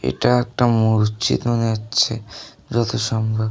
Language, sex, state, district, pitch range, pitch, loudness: Bengali, male, West Bengal, North 24 Parganas, 110-120 Hz, 115 Hz, -19 LUFS